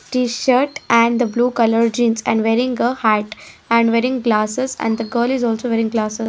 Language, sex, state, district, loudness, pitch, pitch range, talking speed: English, female, Haryana, Jhajjar, -17 LUFS, 235 Hz, 225-250 Hz, 200 wpm